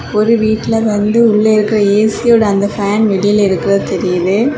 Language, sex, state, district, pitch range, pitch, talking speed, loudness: Tamil, female, Tamil Nadu, Kanyakumari, 200-220 Hz, 210 Hz, 145 wpm, -12 LUFS